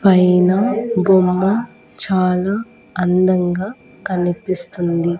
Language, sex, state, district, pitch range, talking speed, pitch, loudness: Telugu, female, Andhra Pradesh, Annamaya, 180-195 Hz, 60 wpm, 185 Hz, -17 LUFS